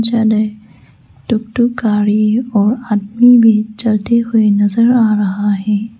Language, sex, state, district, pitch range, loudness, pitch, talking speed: Hindi, female, Arunachal Pradesh, Lower Dibang Valley, 205-230 Hz, -13 LUFS, 215 Hz, 120 wpm